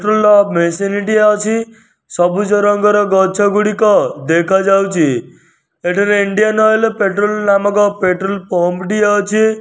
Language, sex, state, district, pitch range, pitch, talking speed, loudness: Odia, male, Odisha, Nuapada, 195-210 Hz, 205 Hz, 105 wpm, -13 LUFS